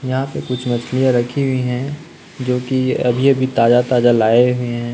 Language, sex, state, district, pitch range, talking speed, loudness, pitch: Hindi, male, Chhattisgarh, Raipur, 120-130 Hz, 195 wpm, -16 LUFS, 125 Hz